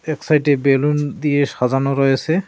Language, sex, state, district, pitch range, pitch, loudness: Bengali, male, West Bengal, Cooch Behar, 135-150 Hz, 145 Hz, -17 LUFS